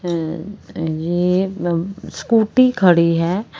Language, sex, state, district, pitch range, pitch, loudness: Hindi, female, Haryana, Rohtak, 170-195 Hz, 175 Hz, -18 LUFS